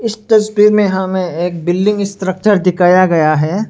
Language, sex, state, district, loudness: Hindi, male, Arunachal Pradesh, Lower Dibang Valley, -13 LUFS